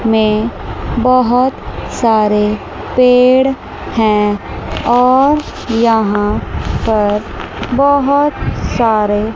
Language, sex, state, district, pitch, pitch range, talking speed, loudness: Hindi, female, Chandigarh, Chandigarh, 230 Hz, 215-255 Hz, 65 wpm, -13 LUFS